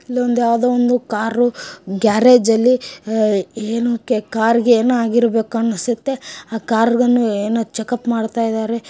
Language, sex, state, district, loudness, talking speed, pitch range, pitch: Kannada, female, Karnataka, Bijapur, -16 LUFS, 130 wpm, 225-245 Hz, 230 Hz